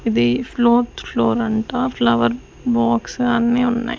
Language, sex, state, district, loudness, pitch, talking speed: Telugu, female, Andhra Pradesh, Sri Satya Sai, -18 LUFS, 230 Hz, 120 wpm